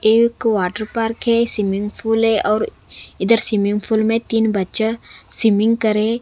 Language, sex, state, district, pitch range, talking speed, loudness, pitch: Hindi, female, Punjab, Kapurthala, 210-225 Hz, 155 wpm, -17 LUFS, 220 Hz